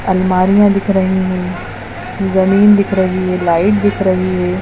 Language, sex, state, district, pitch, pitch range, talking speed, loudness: Hindi, female, Maharashtra, Aurangabad, 185 Hz, 180-195 Hz, 155 wpm, -13 LUFS